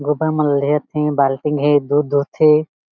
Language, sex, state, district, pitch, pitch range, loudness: Chhattisgarhi, male, Chhattisgarh, Jashpur, 150 Hz, 145-150 Hz, -17 LUFS